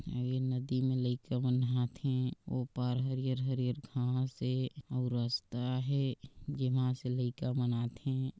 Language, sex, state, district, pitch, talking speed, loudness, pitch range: Chhattisgarhi, male, Chhattisgarh, Sarguja, 130 Hz, 150 wpm, -35 LUFS, 125-130 Hz